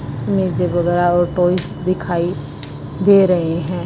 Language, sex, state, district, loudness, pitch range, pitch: Hindi, female, Haryana, Jhajjar, -17 LUFS, 160-180 Hz, 175 Hz